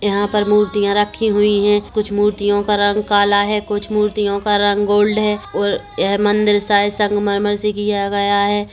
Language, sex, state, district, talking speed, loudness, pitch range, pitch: Hindi, male, Chhattisgarh, Kabirdham, 185 wpm, -16 LUFS, 205-210 Hz, 205 Hz